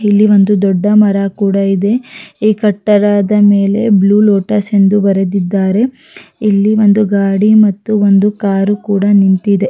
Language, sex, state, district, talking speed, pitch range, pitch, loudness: Kannada, female, Karnataka, Raichur, 125 wpm, 195-210 Hz, 205 Hz, -11 LUFS